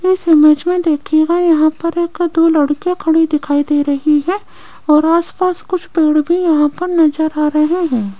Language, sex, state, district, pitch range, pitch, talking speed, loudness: Hindi, female, Rajasthan, Jaipur, 300-345 Hz, 320 Hz, 175 wpm, -14 LUFS